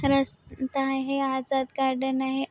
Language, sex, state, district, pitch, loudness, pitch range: Marathi, female, Maharashtra, Chandrapur, 270 Hz, -27 LUFS, 265-275 Hz